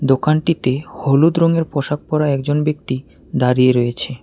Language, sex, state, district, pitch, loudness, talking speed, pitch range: Bengali, male, West Bengal, Alipurduar, 145 Hz, -17 LUFS, 130 wpm, 130-155 Hz